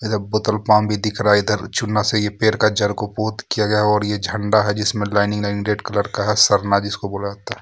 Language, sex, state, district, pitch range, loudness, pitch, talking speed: Hindi, male, Jharkhand, Ranchi, 105-110 Hz, -19 LUFS, 105 Hz, 230 wpm